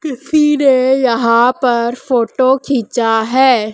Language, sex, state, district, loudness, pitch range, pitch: Hindi, female, Madhya Pradesh, Dhar, -13 LUFS, 235-265 Hz, 255 Hz